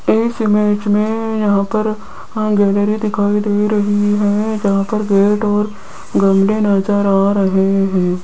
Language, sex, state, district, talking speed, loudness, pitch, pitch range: Hindi, female, Rajasthan, Jaipur, 145 wpm, -15 LUFS, 205 Hz, 200-215 Hz